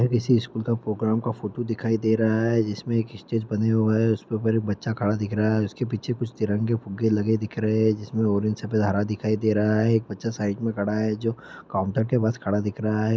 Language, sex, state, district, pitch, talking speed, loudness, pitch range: Hindi, male, Bihar, Jamui, 110 Hz, 270 wpm, -24 LUFS, 105-115 Hz